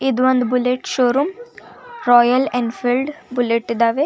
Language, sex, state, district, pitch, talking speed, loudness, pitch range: Kannada, female, Karnataka, Belgaum, 250 Hz, 130 wpm, -18 LUFS, 245-275 Hz